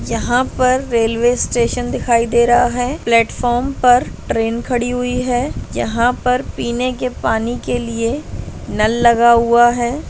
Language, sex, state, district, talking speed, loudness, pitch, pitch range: Hindi, female, Maharashtra, Nagpur, 150 wpm, -16 LUFS, 240 Hz, 235-250 Hz